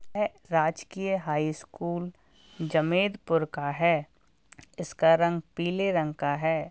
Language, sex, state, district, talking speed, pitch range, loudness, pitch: Hindi, male, Uttar Pradesh, Jalaun, 105 wpm, 155-180 Hz, -28 LUFS, 165 Hz